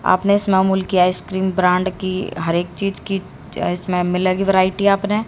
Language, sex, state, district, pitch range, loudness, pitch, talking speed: Hindi, female, Haryana, Rohtak, 180-195 Hz, -18 LUFS, 190 Hz, 170 wpm